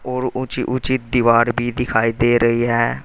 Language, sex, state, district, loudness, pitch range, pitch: Hindi, male, Uttar Pradesh, Saharanpur, -18 LUFS, 115-125 Hz, 120 Hz